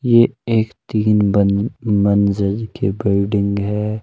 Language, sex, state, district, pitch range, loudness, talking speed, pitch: Hindi, male, Himachal Pradesh, Shimla, 100-110 Hz, -17 LUFS, 120 wpm, 105 Hz